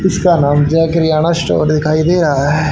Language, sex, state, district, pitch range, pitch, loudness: Hindi, male, Haryana, Charkhi Dadri, 150-170 Hz, 155 Hz, -13 LUFS